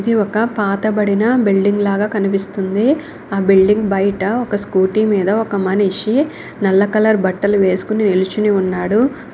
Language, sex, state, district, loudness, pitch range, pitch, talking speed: Telugu, female, Telangana, Karimnagar, -15 LUFS, 195-215 Hz, 205 Hz, 130 wpm